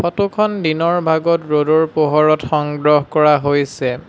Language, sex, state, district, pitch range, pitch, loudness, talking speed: Assamese, male, Assam, Sonitpur, 150-165 Hz, 155 Hz, -15 LUFS, 130 wpm